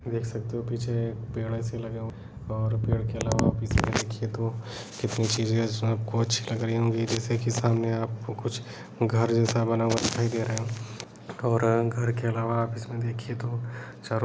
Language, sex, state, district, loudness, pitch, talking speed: Kumaoni, male, Uttarakhand, Uttarkashi, -28 LUFS, 115 Hz, 190 wpm